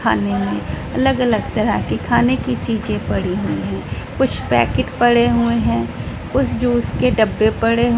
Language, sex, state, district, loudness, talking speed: Hindi, female, Punjab, Pathankot, -18 LUFS, 165 wpm